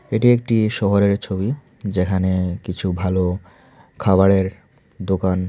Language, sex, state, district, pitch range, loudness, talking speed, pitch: Bengali, male, Tripura, Unakoti, 90-100 Hz, -19 LUFS, 100 wpm, 95 Hz